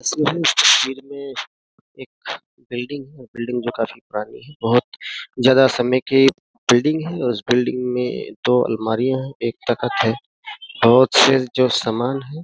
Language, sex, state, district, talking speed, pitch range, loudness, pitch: Hindi, male, Uttar Pradesh, Jyotiba Phule Nagar, 150 wpm, 120-135 Hz, -18 LUFS, 125 Hz